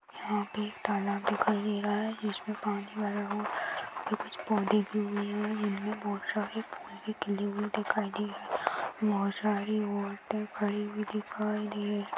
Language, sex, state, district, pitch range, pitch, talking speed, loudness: Hindi, female, Maharashtra, Aurangabad, 205-210 Hz, 210 Hz, 150 wpm, -33 LUFS